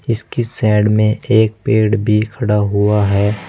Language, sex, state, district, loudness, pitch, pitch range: Hindi, male, Uttar Pradesh, Saharanpur, -15 LUFS, 105 Hz, 105-110 Hz